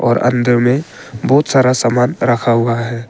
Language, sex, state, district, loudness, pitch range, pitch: Hindi, male, Arunachal Pradesh, Papum Pare, -14 LUFS, 120-125 Hz, 120 Hz